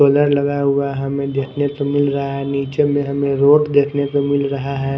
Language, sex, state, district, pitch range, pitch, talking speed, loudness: Hindi, female, Himachal Pradesh, Shimla, 140-145 Hz, 140 Hz, 230 wpm, -17 LUFS